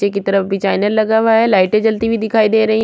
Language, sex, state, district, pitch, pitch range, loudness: Hindi, female, Chhattisgarh, Kabirdham, 220 Hz, 200-220 Hz, -14 LUFS